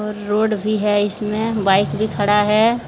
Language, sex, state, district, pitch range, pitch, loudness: Hindi, female, Jharkhand, Deoghar, 205-215 Hz, 210 Hz, -17 LUFS